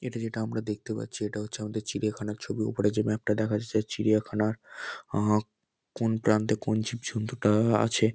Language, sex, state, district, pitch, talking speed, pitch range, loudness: Bengali, male, West Bengal, North 24 Parganas, 110 Hz, 185 wpm, 105-110 Hz, -29 LUFS